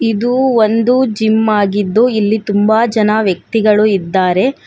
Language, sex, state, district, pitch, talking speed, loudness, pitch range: Kannada, female, Karnataka, Bangalore, 220 Hz, 115 wpm, -12 LUFS, 205-230 Hz